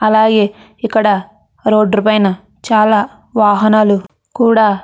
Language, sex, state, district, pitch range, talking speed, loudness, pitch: Telugu, female, Andhra Pradesh, Chittoor, 205-215 Hz, 100 wpm, -13 LUFS, 215 Hz